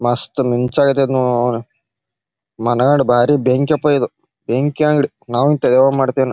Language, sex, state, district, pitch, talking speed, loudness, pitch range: Kannada, male, Karnataka, Bijapur, 130 Hz, 125 wpm, -15 LUFS, 120-140 Hz